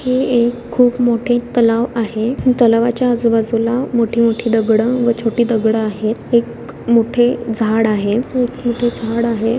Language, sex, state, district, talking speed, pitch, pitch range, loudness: Marathi, female, Maharashtra, Sindhudurg, 145 wpm, 235 Hz, 225-240 Hz, -15 LUFS